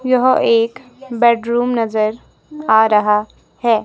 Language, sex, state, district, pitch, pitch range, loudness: Hindi, female, Himachal Pradesh, Shimla, 235 Hz, 220-250 Hz, -15 LUFS